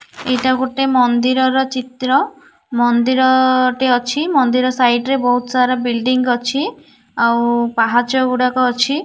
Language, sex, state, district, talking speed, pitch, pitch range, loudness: Odia, female, Odisha, Nuapada, 120 wpm, 255 Hz, 245-260 Hz, -15 LUFS